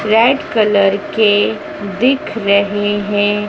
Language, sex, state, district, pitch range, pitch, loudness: Hindi, female, Madhya Pradesh, Dhar, 205-220 Hz, 205 Hz, -14 LUFS